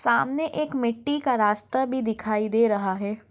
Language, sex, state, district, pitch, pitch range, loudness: Hindi, female, Maharashtra, Sindhudurg, 230 Hz, 210-265 Hz, -25 LUFS